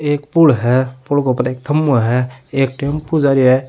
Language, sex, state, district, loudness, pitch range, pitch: Rajasthani, male, Rajasthan, Nagaur, -15 LUFS, 130-145 Hz, 135 Hz